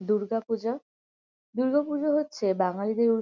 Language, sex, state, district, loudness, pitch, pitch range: Bengali, female, West Bengal, Kolkata, -27 LUFS, 225 Hz, 210-275 Hz